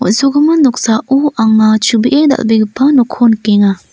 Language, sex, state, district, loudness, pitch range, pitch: Garo, female, Meghalaya, North Garo Hills, -10 LUFS, 220-275 Hz, 235 Hz